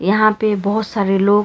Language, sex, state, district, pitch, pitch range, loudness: Hindi, female, Karnataka, Bangalore, 205 Hz, 200-215 Hz, -16 LUFS